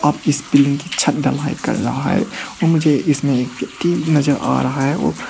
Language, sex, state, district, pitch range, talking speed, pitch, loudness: Hindi, male, Arunachal Pradesh, Papum Pare, 140-160 Hz, 205 wpm, 145 Hz, -17 LUFS